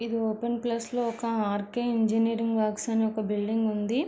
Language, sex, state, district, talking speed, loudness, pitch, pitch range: Telugu, female, Andhra Pradesh, Visakhapatnam, 175 wpm, -28 LUFS, 225 Hz, 215-235 Hz